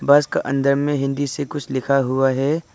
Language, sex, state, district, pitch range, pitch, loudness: Hindi, male, Arunachal Pradesh, Lower Dibang Valley, 135-145 Hz, 140 Hz, -20 LUFS